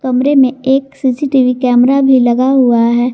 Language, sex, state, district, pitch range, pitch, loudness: Hindi, female, Jharkhand, Garhwa, 250-270 Hz, 255 Hz, -11 LUFS